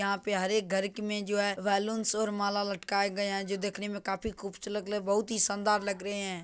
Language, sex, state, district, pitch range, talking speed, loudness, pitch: Maithili, male, Bihar, Madhepura, 200-210 Hz, 250 wpm, -31 LUFS, 200 Hz